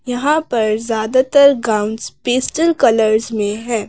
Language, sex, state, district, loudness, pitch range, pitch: Hindi, female, Madhya Pradesh, Bhopal, -15 LUFS, 220-260 Hz, 230 Hz